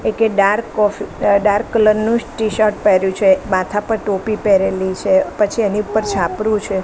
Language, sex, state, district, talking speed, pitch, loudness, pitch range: Gujarati, female, Gujarat, Gandhinagar, 165 wpm, 210 Hz, -16 LUFS, 195-215 Hz